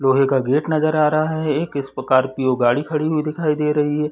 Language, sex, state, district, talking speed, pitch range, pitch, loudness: Hindi, male, Chhattisgarh, Sarguja, 235 wpm, 135-155 Hz, 150 Hz, -19 LUFS